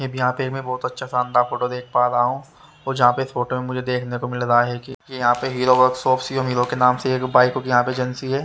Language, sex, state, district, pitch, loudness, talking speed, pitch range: Hindi, male, Haryana, Rohtak, 125 Hz, -20 LUFS, 255 wpm, 125-130 Hz